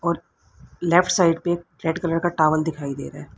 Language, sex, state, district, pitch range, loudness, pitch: Hindi, female, Haryana, Rohtak, 160-175 Hz, -22 LUFS, 170 Hz